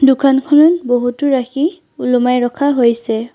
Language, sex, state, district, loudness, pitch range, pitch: Assamese, female, Assam, Sonitpur, -14 LUFS, 245-285 Hz, 265 Hz